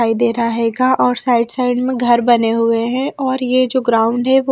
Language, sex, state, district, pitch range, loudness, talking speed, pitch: Hindi, female, Haryana, Rohtak, 230-255 Hz, -15 LUFS, 250 wpm, 245 Hz